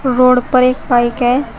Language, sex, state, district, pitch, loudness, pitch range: Hindi, female, Uttar Pradesh, Shamli, 255 Hz, -13 LUFS, 245-255 Hz